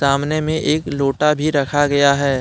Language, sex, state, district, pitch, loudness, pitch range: Hindi, male, Jharkhand, Deoghar, 145 Hz, -17 LUFS, 140-150 Hz